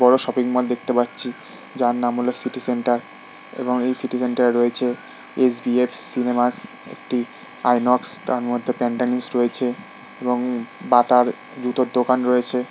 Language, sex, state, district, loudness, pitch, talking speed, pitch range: Bengali, male, West Bengal, Purulia, -21 LUFS, 125 Hz, 125 wpm, 120-125 Hz